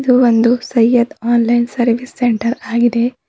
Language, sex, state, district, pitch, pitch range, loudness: Kannada, female, Karnataka, Bidar, 240 Hz, 235-245 Hz, -14 LUFS